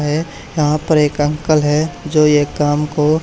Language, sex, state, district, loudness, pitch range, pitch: Hindi, male, Haryana, Charkhi Dadri, -15 LUFS, 150-155 Hz, 150 Hz